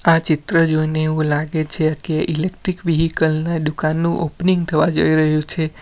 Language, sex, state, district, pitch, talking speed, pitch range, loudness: Gujarati, male, Gujarat, Valsad, 160 Hz, 165 wpm, 155-165 Hz, -18 LUFS